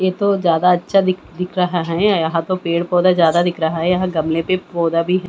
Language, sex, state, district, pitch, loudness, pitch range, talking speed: Hindi, female, Bihar, West Champaran, 180 Hz, -17 LUFS, 165-185 Hz, 250 wpm